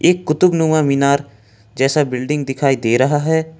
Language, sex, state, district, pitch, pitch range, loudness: Hindi, male, Jharkhand, Ranchi, 140 Hz, 130-160 Hz, -16 LUFS